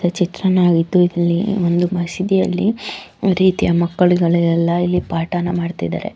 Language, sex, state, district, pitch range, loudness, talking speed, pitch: Kannada, female, Karnataka, Shimoga, 170-185 Hz, -17 LUFS, 125 wpm, 175 Hz